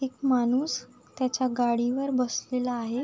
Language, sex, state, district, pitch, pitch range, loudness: Marathi, female, Maharashtra, Sindhudurg, 255 Hz, 245-260 Hz, -27 LUFS